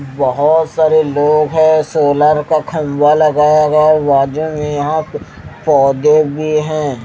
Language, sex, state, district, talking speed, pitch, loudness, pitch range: Hindi, male, Haryana, Jhajjar, 120 wpm, 150 Hz, -12 LUFS, 145-155 Hz